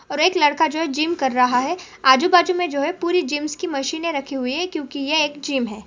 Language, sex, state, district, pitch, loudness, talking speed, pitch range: Hindi, female, Maharashtra, Pune, 300 Hz, -20 LUFS, 245 wpm, 275-345 Hz